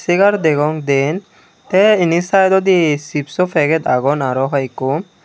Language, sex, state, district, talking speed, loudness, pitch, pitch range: Chakma, male, Tripura, Unakoti, 135 wpm, -15 LUFS, 160 Hz, 140-185 Hz